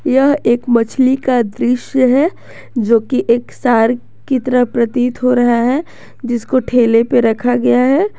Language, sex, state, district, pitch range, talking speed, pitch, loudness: Hindi, female, Jharkhand, Garhwa, 235-260 Hz, 155 wpm, 245 Hz, -14 LUFS